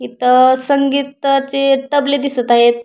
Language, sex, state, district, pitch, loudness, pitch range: Marathi, female, Maharashtra, Pune, 275 Hz, -14 LUFS, 250-280 Hz